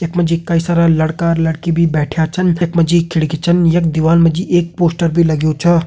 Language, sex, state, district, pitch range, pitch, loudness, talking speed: Hindi, male, Uttarakhand, Uttarkashi, 160-170 Hz, 170 Hz, -14 LUFS, 225 wpm